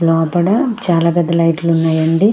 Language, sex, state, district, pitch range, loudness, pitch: Telugu, female, Andhra Pradesh, Krishna, 165-175 Hz, -14 LUFS, 170 Hz